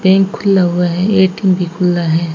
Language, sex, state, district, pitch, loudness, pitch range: Hindi, female, Rajasthan, Bikaner, 185 Hz, -13 LUFS, 175-190 Hz